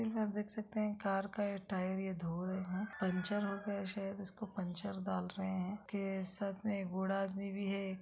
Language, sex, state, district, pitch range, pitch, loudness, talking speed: Hindi, female, Uttarakhand, Tehri Garhwal, 190-205 Hz, 195 Hz, -40 LUFS, 230 wpm